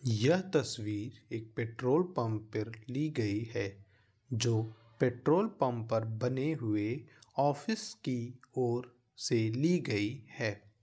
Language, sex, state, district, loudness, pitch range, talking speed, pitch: Hindi, male, Bihar, Vaishali, -34 LUFS, 110-135 Hz, 120 wpm, 120 Hz